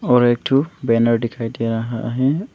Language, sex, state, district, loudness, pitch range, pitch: Hindi, male, Arunachal Pradesh, Longding, -19 LUFS, 115-135 Hz, 120 Hz